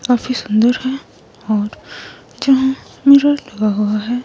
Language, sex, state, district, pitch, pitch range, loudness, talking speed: Hindi, female, Himachal Pradesh, Shimla, 245 Hz, 215-265 Hz, -15 LUFS, 125 wpm